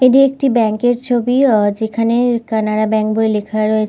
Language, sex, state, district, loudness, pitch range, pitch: Bengali, female, West Bengal, Kolkata, -15 LUFS, 215-245 Hz, 225 Hz